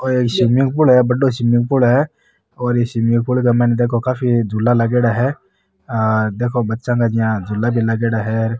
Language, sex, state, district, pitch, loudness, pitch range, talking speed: Marwari, male, Rajasthan, Nagaur, 120 Hz, -16 LUFS, 115-125 Hz, 200 wpm